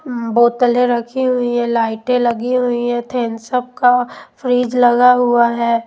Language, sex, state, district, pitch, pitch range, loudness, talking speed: Hindi, female, Odisha, Malkangiri, 245 Hz, 235-250 Hz, -15 LUFS, 155 wpm